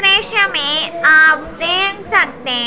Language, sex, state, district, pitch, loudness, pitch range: Hindi, female, Punjab, Pathankot, 335 Hz, -12 LUFS, 305-390 Hz